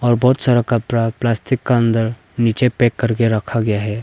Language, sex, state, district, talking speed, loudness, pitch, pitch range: Hindi, male, Arunachal Pradesh, Lower Dibang Valley, 180 wpm, -17 LUFS, 115 Hz, 115-120 Hz